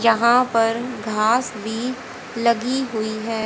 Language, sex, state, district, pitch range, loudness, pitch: Hindi, female, Haryana, Charkhi Dadri, 220-250 Hz, -20 LUFS, 230 Hz